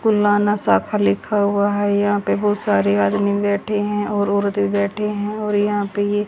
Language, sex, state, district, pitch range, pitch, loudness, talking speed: Hindi, female, Haryana, Jhajjar, 200-210 Hz, 205 Hz, -19 LUFS, 220 wpm